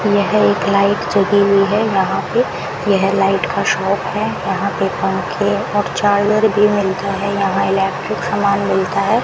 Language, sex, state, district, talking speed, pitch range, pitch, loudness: Hindi, female, Rajasthan, Bikaner, 170 wpm, 195-210 Hz, 200 Hz, -16 LUFS